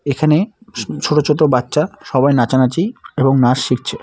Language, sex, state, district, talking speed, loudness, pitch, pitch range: Bengali, male, West Bengal, Alipurduar, 150 wpm, -15 LUFS, 145 Hz, 130-165 Hz